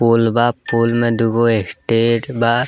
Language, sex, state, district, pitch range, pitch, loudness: Bhojpuri, male, Bihar, East Champaran, 115-120 Hz, 115 Hz, -16 LUFS